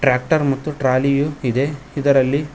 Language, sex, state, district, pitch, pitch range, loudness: Kannada, male, Karnataka, Koppal, 140 Hz, 135-145 Hz, -18 LUFS